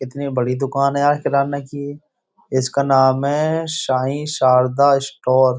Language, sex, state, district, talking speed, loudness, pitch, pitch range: Hindi, male, Uttar Pradesh, Jyotiba Phule Nagar, 150 wpm, -18 LUFS, 140 Hz, 130-145 Hz